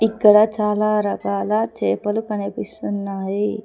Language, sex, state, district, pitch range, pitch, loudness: Telugu, female, Telangana, Komaram Bheem, 200-215 Hz, 210 Hz, -20 LUFS